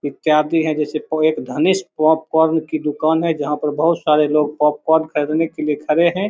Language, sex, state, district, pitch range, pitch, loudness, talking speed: Hindi, male, Bihar, Begusarai, 150-160 Hz, 155 Hz, -17 LUFS, 200 wpm